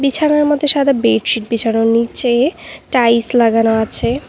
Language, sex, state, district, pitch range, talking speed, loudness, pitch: Bengali, female, West Bengal, Cooch Behar, 225-275 Hz, 125 wpm, -14 LUFS, 235 Hz